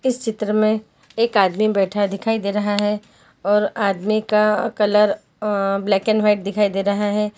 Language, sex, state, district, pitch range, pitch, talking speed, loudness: Hindi, female, Chhattisgarh, Bilaspur, 200-215 Hz, 210 Hz, 180 wpm, -19 LUFS